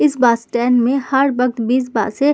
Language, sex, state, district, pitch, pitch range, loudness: Hindi, female, Uttar Pradesh, Muzaffarnagar, 250 Hz, 235-270 Hz, -16 LUFS